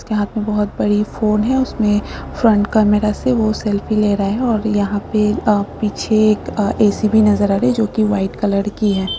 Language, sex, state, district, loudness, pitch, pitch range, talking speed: Hindi, female, Jharkhand, Sahebganj, -16 LUFS, 210 Hz, 205-215 Hz, 220 wpm